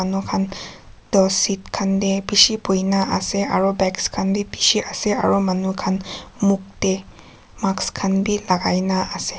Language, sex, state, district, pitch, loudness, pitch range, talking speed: Nagamese, female, Nagaland, Kohima, 195 Hz, -20 LUFS, 190-200 Hz, 155 wpm